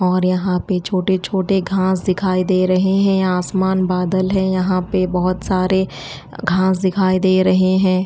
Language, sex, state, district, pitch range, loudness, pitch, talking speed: Hindi, female, Chandigarh, Chandigarh, 185-190 Hz, -17 LUFS, 185 Hz, 165 wpm